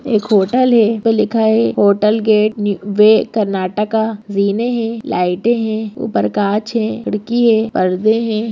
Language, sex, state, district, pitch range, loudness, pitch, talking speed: Hindi, female, Maharashtra, Nagpur, 205-225 Hz, -15 LUFS, 215 Hz, 150 wpm